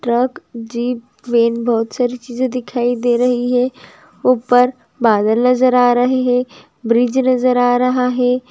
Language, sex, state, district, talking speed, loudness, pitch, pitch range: Hindi, female, Andhra Pradesh, Chittoor, 150 wpm, -16 LUFS, 245 Hz, 240-250 Hz